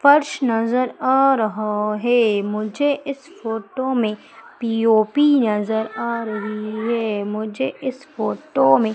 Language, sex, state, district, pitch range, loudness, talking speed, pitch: Hindi, female, Madhya Pradesh, Umaria, 215-260 Hz, -20 LUFS, 120 wpm, 225 Hz